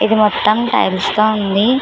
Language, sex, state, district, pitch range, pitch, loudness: Telugu, female, Telangana, Hyderabad, 205-220 Hz, 215 Hz, -14 LUFS